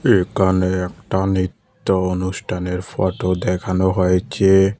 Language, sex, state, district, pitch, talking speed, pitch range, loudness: Bengali, male, Tripura, West Tripura, 95 Hz, 90 wpm, 90-95 Hz, -19 LUFS